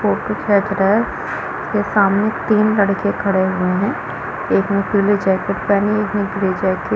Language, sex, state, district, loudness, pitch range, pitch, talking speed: Hindi, female, Chhattisgarh, Balrampur, -17 LUFS, 195-205 Hz, 200 Hz, 190 wpm